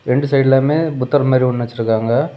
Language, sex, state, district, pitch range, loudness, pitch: Tamil, male, Tamil Nadu, Kanyakumari, 120-145 Hz, -15 LUFS, 135 Hz